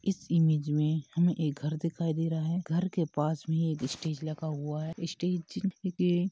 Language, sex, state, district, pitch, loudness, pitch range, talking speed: Hindi, male, Uttar Pradesh, Hamirpur, 160 Hz, -31 LUFS, 155-175 Hz, 210 wpm